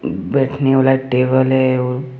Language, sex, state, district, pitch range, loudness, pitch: Hindi, male, Jharkhand, Deoghar, 130-135 Hz, -16 LUFS, 130 Hz